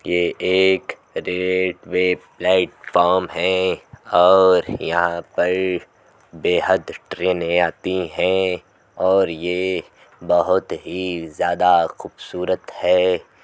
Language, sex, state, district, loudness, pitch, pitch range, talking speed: Hindi, male, Uttar Pradesh, Muzaffarnagar, -19 LUFS, 90 Hz, 90-95 Hz, 85 wpm